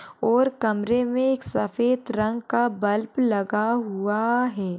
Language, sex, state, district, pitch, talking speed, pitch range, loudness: Hindi, female, Uttar Pradesh, Budaun, 230 Hz, 140 wpm, 210-245 Hz, -24 LUFS